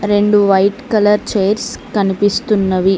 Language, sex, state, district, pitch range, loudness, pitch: Telugu, female, Telangana, Mahabubabad, 195-210 Hz, -14 LUFS, 205 Hz